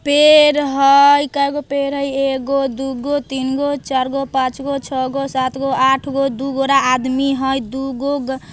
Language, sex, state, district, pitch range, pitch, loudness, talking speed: Bajjika, female, Bihar, Vaishali, 265-280 Hz, 275 Hz, -16 LUFS, 140 wpm